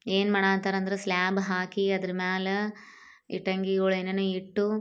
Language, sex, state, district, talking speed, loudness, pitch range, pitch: Kannada, female, Karnataka, Bijapur, 125 wpm, -28 LUFS, 185-195 Hz, 195 Hz